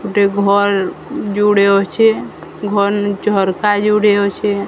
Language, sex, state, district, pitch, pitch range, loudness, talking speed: Odia, female, Odisha, Sambalpur, 200 Hz, 200-205 Hz, -14 LUFS, 100 wpm